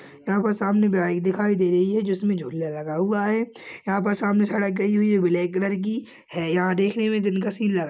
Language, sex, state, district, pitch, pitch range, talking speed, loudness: Hindi, male, Uttar Pradesh, Budaun, 200 Hz, 185-210 Hz, 235 wpm, -23 LUFS